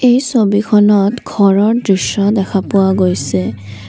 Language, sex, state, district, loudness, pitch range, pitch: Assamese, female, Assam, Kamrup Metropolitan, -13 LUFS, 190-210 Hz, 200 Hz